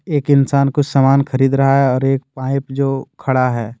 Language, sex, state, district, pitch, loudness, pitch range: Hindi, male, Jharkhand, Deoghar, 135 Hz, -16 LUFS, 130-140 Hz